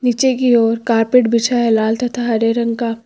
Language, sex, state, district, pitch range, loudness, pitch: Hindi, female, Uttar Pradesh, Lucknow, 225-245 Hz, -15 LUFS, 235 Hz